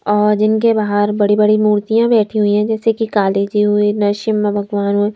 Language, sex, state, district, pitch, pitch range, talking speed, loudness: Hindi, female, Himachal Pradesh, Shimla, 210 Hz, 205-215 Hz, 200 wpm, -14 LUFS